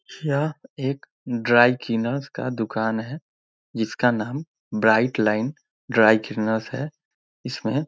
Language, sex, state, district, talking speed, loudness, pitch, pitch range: Hindi, male, Bihar, Muzaffarpur, 120 wpm, -23 LUFS, 120 Hz, 110-140 Hz